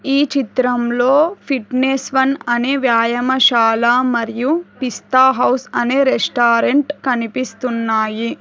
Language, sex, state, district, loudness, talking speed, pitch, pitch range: Telugu, female, Telangana, Hyderabad, -16 LUFS, 85 wpm, 255 Hz, 235-270 Hz